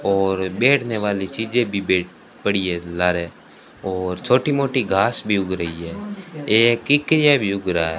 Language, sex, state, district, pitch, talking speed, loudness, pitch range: Hindi, male, Rajasthan, Bikaner, 100 Hz, 175 wpm, -19 LUFS, 95-125 Hz